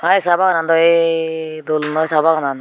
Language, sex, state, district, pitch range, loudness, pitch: Chakma, female, Tripura, Unakoti, 155-165 Hz, -15 LUFS, 160 Hz